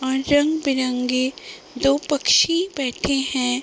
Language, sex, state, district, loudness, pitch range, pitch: Hindi, female, Uttar Pradesh, Deoria, -20 LUFS, 255-290 Hz, 270 Hz